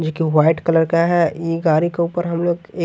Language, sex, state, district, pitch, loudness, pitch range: Hindi, male, Haryana, Jhajjar, 165 Hz, -17 LUFS, 160-170 Hz